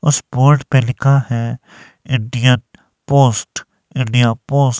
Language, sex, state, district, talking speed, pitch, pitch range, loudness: Hindi, male, Himachal Pradesh, Shimla, 125 wpm, 130 Hz, 125-140 Hz, -15 LUFS